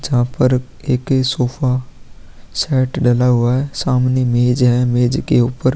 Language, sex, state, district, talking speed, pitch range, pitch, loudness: Hindi, male, Bihar, Vaishali, 155 wpm, 125-130 Hz, 125 Hz, -16 LUFS